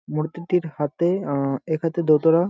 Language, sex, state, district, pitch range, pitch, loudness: Bengali, male, West Bengal, Jalpaiguri, 150-170 Hz, 160 Hz, -22 LUFS